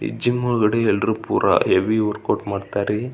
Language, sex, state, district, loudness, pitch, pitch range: Kannada, male, Karnataka, Belgaum, -20 LUFS, 110 Hz, 105-120 Hz